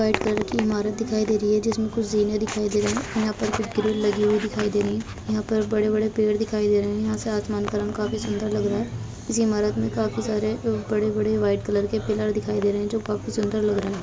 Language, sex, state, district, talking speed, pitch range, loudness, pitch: Hindi, female, Bihar, East Champaran, 300 wpm, 210-215 Hz, -24 LUFS, 210 Hz